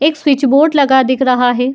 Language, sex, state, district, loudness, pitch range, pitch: Hindi, female, Uttar Pradesh, Muzaffarnagar, -12 LUFS, 255-290 Hz, 265 Hz